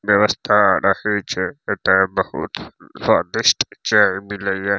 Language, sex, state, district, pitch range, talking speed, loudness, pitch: Maithili, male, Bihar, Saharsa, 95-100 Hz, 110 wpm, -18 LUFS, 100 Hz